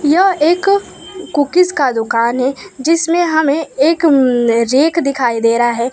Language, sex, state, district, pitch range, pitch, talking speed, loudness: Hindi, female, Gujarat, Valsad, 245-335 Hz, 290 Hz, 140 wpm, -13 LUFS